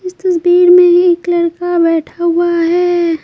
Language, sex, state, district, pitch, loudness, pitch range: Hindi, female, Bihar, Patna, 350 Hz, -11 LUFS, 340-355 Hz